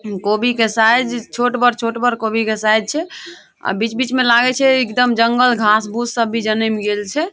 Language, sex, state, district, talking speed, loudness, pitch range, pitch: Maithili, female, Bihar, Madhepura, 230 wpm, -16 LUFS, 220-245 Hz, 235 Hz